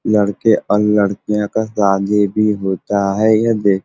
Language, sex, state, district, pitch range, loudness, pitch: Bhojpuri, male, Uttar Pradesh, Varanasi, 100-105 Hz, -15 LUFS, 105 Hz